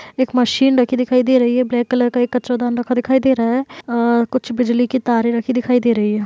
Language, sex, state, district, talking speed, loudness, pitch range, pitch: Hindi, female, Uttar Pradesh, Varanasi, 260 wpm, -16 LUFS, 240-255 Hz, 245 Hz